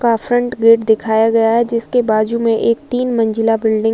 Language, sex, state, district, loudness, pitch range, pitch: Hindi, female, Uttar Pradesh, Varanasi, -14 LUFS, 225-235 Hz, 230 Hz